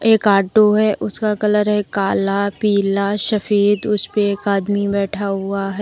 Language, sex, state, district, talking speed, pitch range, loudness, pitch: Hindi, female, Uttar Pradesh, Lalitpur, 165 wpm, 200-210 Hz, -17 LUFS, 205 Hz